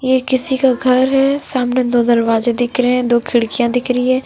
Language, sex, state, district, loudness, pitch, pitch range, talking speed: Hindi, female, Punjab, Fazilka, -15 LUFS, 250 Hz, 240-260 Hz, 225 wpm